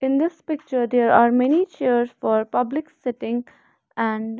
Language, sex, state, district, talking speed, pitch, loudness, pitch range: English, female, Haryana, Rohtak, 165 wpm, 245 Hz, -21 LUFS, 235-295 Hz